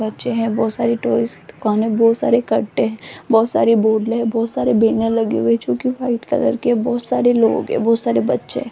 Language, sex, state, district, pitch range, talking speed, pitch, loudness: Hindi, female, Rajasthan, Jaipur, 220-235 Hz, 220 wpm, 225 Hz, -17 LUFS